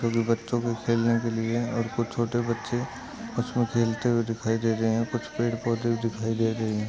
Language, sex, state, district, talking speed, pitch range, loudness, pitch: Hindi, male, Uttar Pradesh, Etah, 220 wpm, 115-120 Hz, -27 LUFS, 115 Hz